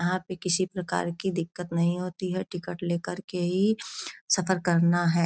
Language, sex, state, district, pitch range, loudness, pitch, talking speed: Hindi, female, Uttar Pradesh, Gorakhpur, 175-185 Hz, -28 LUFS, 180 Hz, 170 wpm